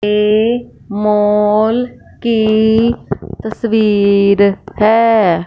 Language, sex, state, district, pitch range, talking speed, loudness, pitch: Hindi, female, Punjab, Fazilka, 210-225 Hz, 55 wpm, -13 LUFS, 215 Hz